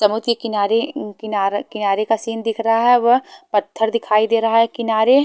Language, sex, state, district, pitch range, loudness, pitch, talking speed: Hindi, female, Haryana, Charkhi Dadri, 215-235 Hz, -18 LUFS, 225 Hz, 195 wpm